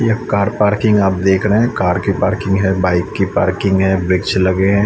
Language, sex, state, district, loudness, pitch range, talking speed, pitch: Hindi, male, Chandigarh, Chandigarh, -15 LUFS, 95-105 Hz, 220 wpm, 95 Hz